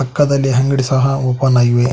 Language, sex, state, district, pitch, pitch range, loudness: Kannada, male, Karnataka, Koppal, 135 Hz, 125-135 Hz, -14 LUFS